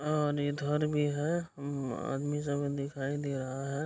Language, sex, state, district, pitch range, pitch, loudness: Hindi, male, Bihar, Kishanganj, 140-150 Hz, 145 Hz, -33 LUFS